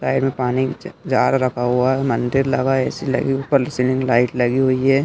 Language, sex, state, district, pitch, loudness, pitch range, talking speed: Hindi, male, Madhya Pradesh, Dhar, 130 Hz, -18 LUFS, 125-135 Hz, 215 wpm